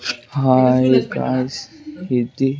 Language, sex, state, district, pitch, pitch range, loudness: Telugu, male, Andhra Pradesh, Sri Satya Sai, 130 Hz, 125-135 Hz, -18 LUFS